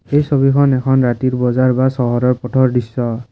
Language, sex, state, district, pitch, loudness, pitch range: Assamese, male, Assam, Kamrup Metropolitan, 130 Hz, -15 LUFS, 125-130 Hz